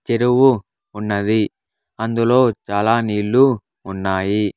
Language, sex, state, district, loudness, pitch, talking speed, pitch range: Telugu, male, Andhra Pradesh, Sri Satya Sai, -18 LUFS, 110 Hz, 80 wpm, 100-120 Hz